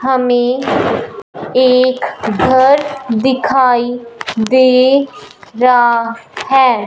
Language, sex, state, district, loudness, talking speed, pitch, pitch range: Hindi, male, Punjab, Fazilka, -12 LUFS, 60 wpm, 255 Hz, 240-260 Hz